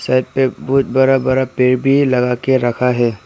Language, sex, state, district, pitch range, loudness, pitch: Hindi, male, Arunachal Pradesh, Papum Pare, 125-135 Hz, -15 LUFS, 130 Hz